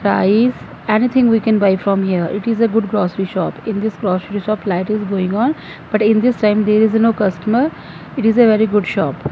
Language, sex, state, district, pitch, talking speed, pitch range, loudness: English, female, Punjab, Fazilka, 215 Hz, 225 wpm, 195-225 Hz, -16 LUFS